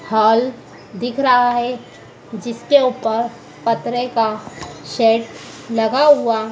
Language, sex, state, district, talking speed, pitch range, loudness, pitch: Hindi, female, Madhya Pradesh, Dhar, 100 wpm, 225-245 Hz, -17 LUFS, 235 Hz